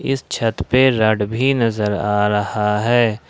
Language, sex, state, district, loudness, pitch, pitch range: Hindi, male, Jharkhand, Ranchi, -17 LUFS, 110 Hz, 105-120 Hz